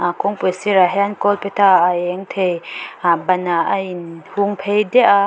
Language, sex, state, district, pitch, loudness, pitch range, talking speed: Mizo, female, Mizoram, Aizawl, 190 Hz, -17 LUFS, 175-200 Hz, 180 wpm